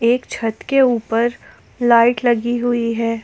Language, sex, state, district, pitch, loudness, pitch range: Hindi, female, Jharkhand, Ranchi, 235 Hz, -17 LUFS, 230-240 Hz